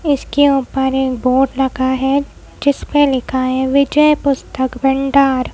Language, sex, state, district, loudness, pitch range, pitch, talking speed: Hindi, female, Madhya Pradesh, Bhopal, -15 LUFS, 260-280 Hz, 270 Hz, 150 wpm